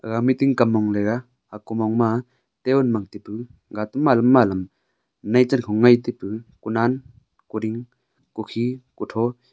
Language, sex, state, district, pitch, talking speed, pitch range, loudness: Wancho, male, Arunachal Pradesh, Longding, 115 Hz, 155 wpm, 110-125 Hz, -21 LUFS